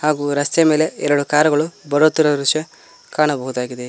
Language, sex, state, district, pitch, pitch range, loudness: Kannada, male, Karnataka, Koppal, 150 Hz, 145-155 Hz, -17 LUFS